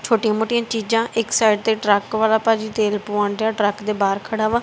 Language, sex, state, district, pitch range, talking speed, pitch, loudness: Punjabi, female, Punjab, Kapurthala, 210-225 Hz, 220 wpm, 220 Hz, -19 LUFS